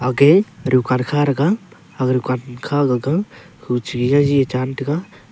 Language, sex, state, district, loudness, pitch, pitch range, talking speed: Wancho, male, Arunachal Pradesh, Longding, -18 LUFS, 135 Hz, 125-150 Hz, 180 wpm